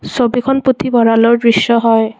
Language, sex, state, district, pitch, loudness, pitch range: Assamese, female, Assam, Kamrup Metropolitan, 235 Hz, -12 LUFS, 230-250 Hz